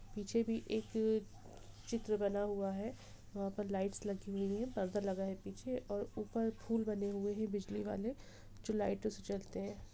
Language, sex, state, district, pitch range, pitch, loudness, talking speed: Hindi, female, Bihar, Gopalganj, 195-220 Hz, 205 Hz, -40 LUFS, 180 wpm